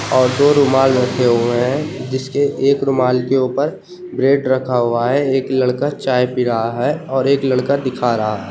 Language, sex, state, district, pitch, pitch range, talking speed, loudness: Hindi, male, Uttar Pradesh, Jyotiba Phule Nagar, 130 Hz, 125-140 Hz, 190 wpm, -16 LUFS